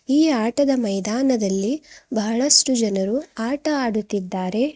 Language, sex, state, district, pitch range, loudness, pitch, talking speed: Kannada, female, Karnataka, Bidar, 215-285 Hz, -20 LUFS, 245 Hz, 90 wpm